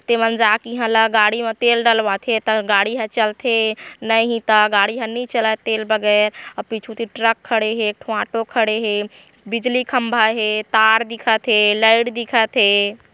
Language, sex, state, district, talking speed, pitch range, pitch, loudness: Chhattisgarhi, female, Chhattisgarh, Korba, 175 wpm, 215-230 Hz, 225 Hz, -17 LUFS